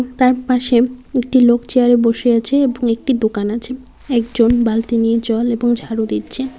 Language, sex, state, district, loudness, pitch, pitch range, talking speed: Bengali, female, West Bengal, Cooch Behar, -16 LUFS, 240 Hz, 230-255 Hz, 165 wpm